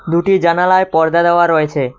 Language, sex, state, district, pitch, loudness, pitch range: Bengali, male, West Bengal, Cooch Behar, 170 Hz, -13 LUFS, 160-175 Hz